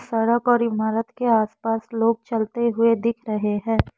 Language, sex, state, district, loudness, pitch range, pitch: Hindi, female, Assam, Kamrup Metropolitan, -22 LUFS, 225-235 Hz, 225 Hz